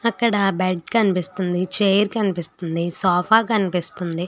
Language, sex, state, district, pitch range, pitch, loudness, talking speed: Telugu, female, Telangana, Hyderabad, 175-210 Hz, 185 Hz, -20 LUFS, 100 wpm